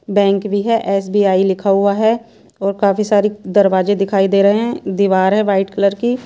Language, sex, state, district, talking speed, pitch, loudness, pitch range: Hindi, female, Odisha, Sambalpur, 190 wpm, 200 Hz, -15 LUFS, 195-210 Hz